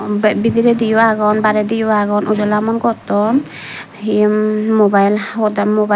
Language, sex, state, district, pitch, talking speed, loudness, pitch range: Chakma, female, Tripura, Dhalai, 215 Hz, 140 wpm, -14 LUFS, 210-220 Hz